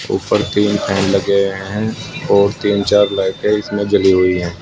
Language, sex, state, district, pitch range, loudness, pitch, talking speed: Hindi, male, Uttar Pradesh, Saharanpur, 95-105 Hz, -15 LUFS, 100 Hz, 180 wpm